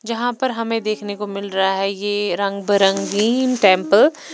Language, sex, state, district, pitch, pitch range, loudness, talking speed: Hindi, female, Punjab, Pathankot, 205 Hz, 200-230 Hz, -18 LUFS, 180 wpm